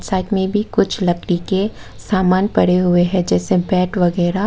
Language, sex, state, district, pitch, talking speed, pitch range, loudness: Hindi, female, Tripura, West Tripura, 185 Hz, 175 wpm, 175-195 Hz, -17 LUFS